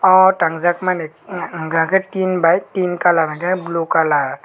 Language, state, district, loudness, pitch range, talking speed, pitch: Kokborok, Tripura, West Tripura, -17 LUFS, 160-185 Hz, 160 wpm, 175 Hz